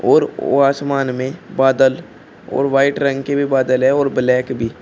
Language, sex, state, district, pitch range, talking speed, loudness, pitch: Hindi, male, Uttar Pradesh, Shamli, 130-140 Hz, 185 wpm, -16 LUFS, 135 Hz